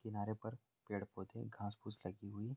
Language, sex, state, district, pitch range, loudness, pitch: Hindi, male, Bihar, Jamui, 100-110 Hz, -48 LUFS, 105 Hz